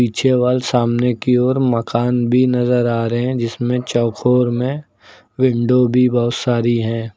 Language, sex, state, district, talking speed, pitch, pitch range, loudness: Hindi, male, Uttar Pradesh, Lucknow, 160 wpm, 125 Hz, 120-125 Hz, -16 LUFS